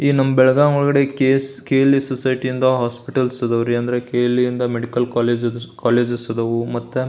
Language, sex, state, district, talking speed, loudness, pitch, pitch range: Kannada, male, Karnataka, Belgaum, 150 wpm, -18 LUFS, 125 Hz, 120-135 Hz